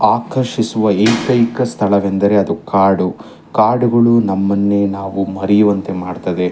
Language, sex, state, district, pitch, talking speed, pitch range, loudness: Kannada, male, Karnataka, Chamarajanagar, 100 Hz, 90 wpm, 95-115 Hz, -15 LUFS